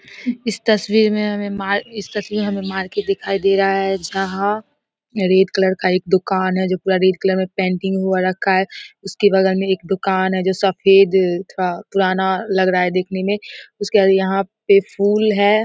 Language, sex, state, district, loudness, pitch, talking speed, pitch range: Hindi, female, Bihar, Samastipur, -17 LUFS, 195 Hz, 195 wpm, 190-205 Hz